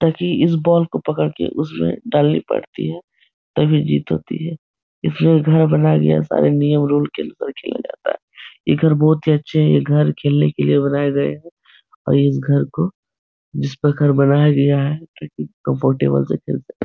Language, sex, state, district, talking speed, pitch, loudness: Hindi, male, Uttar Pradesh, Etah, 190 wpm, 140 Hz, -17 LUFS